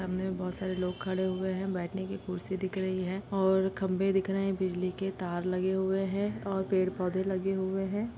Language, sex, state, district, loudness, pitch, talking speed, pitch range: Hindi, female, Chhattisgarh, Rajnandgaon, -32 LUFS, 190 Hz, 220 wpm, 185-195 Hz